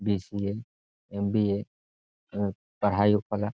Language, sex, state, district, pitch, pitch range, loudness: Bhojpuri, male, Bihar, Saran, 100 Hz, 95-105 Hz, -28 LUFS